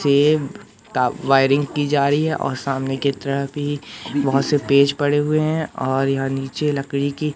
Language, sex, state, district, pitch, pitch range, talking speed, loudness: Hindi, male, Madhya Pradesh, Katni, 140 Hz, 135-145 Hz, 190 wpm, -20 LUFS